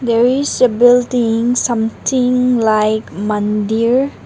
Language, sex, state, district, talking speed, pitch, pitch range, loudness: English, female, Nagaland, Dimapur, 100 wpm, 235 Hz, 220-250 Hz, -14 LUFS